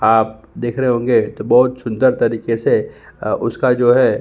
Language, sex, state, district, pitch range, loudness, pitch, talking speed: Hindi, male, Uttar Pradesh, Jyotiba Phule Nagar, 115-125 Hz, -16 LUFS, 120 Hz, 200 wpm